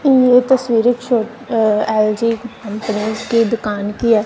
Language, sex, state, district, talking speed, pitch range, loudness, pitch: Hindi, female, Punjab, Kapurthala, 140 wpm, 215-245 Hz, -16 LUFS, 230 Hz